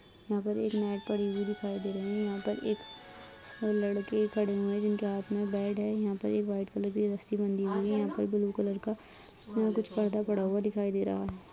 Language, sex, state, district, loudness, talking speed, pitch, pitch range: Hindi, female, Bihar, Purnia, -32 LUFS, 240 wpm, 205 Hz, 200-210 Hz